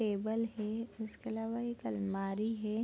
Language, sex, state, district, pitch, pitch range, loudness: Hindi, female, Bihar, Darbhanga, 220 Hz, 210-225 Hz, -38 LUFS